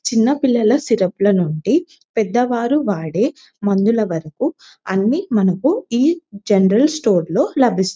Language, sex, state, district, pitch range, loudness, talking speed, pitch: Telugu, female, Telangana, Nalgonda, 195-280 Hz, -17 LUFS, 105 wpm, 225 Hz